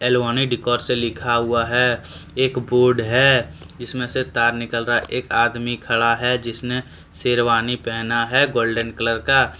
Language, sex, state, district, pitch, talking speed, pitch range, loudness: Hindi, male, Jharkhand, Deoghar, 120 Hz, 155 wpm, 115-125 Hz, -19 LUFS